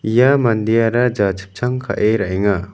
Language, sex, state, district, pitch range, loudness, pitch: Garo, male, Meghalaya, West Garo Hills, 100-125 Hz, -17 LUFS, 110 Hz